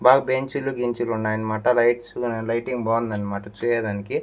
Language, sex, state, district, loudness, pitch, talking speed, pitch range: Telugu, male, Andhra Pradesh, Annamaya, -23 LUFS, 120 Hz, 125 wpm, 110-125 Hz